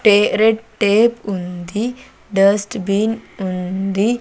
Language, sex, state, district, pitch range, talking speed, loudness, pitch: Telugu, female, Andhra Pradesh, Sri Satya Sai, 195-225 Hz, 100 wpm, -18 LUFS, 205 Hz